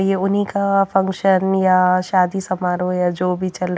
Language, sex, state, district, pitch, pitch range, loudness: Hindi, female, Haryana, Jhajjar, 185 Hz, 180-195 Hz, -18 LUFS